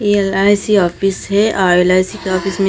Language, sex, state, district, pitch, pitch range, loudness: Hindi, female, Maharashtra, Gondia, 195 Hz, 185-205 Hz, -14 LUFS